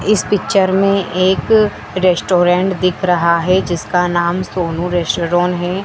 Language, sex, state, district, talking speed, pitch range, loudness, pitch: Hindi, female, Madhya Pradesh, Dhar, 135 wpm, 175-190 Hz, -15 LUFS, 180 Hz